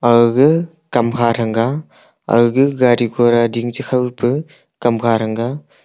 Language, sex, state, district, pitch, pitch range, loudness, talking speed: Wancho, male, Arunachal Pradesh, Longding, 120 Hz, 115-135 Hz, -16 LUFS, 115 wpm